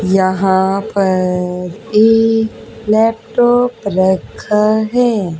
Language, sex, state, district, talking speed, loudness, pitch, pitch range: Hindi, female, Haryana, Charkhi Dadri, 65 wpm, -14 LUFS, 210 Hz, 190-225 Hz